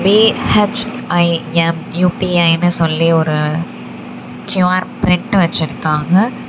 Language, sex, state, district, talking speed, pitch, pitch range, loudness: Tamil, female, Tamil Nadu, Namakkal, 75 wpm, 170 Hz, 155-185 Hz, -14 LUFS